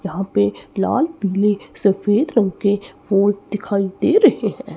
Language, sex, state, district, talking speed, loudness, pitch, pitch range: Hindi, male, Chandigarh, Chandigarh, 150 wpm, -18 LUFS, 200 Hz, 195-215 Hz